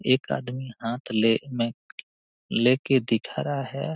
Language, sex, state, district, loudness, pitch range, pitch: Hindi, male, Jharkhand, Jamtara, -26 LUFS, 115-130 Hz, 125 Hz